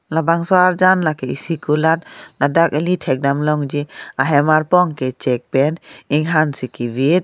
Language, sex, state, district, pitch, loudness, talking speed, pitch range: Karbi, female, Assam, Karbi Anglong, 150 Hz, -17 LUFS, 150 wpm, 140-165 Hz